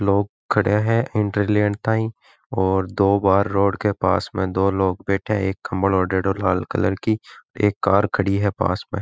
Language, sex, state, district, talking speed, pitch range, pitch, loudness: Marwari, male, Rajasthan, Nagaur, 195 wpm, 95-105 Hz, 100 Hz, -21 LUFS